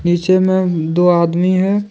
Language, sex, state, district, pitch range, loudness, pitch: Hindi, male, Jharkhand, Deoghar, 175-185 Hz, -14 LUFS, 180 Hz